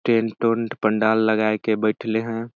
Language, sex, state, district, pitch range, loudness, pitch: Awadhi, male, Chhattisgarh, Balrampur, 110-115 Hz, -21 LUFS, 110 Hz